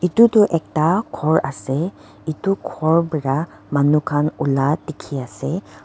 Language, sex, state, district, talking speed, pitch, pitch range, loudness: Nagamese, female, Nagaland, Dimapur, 125 wpm, 155 Hz, 140-175 Hz, -19 LUFS